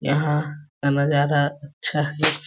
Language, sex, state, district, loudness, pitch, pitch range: Hindi, male, Chhattisgarh, Balrampur, -22 LUFS, 150 Hz, 145-150 Hz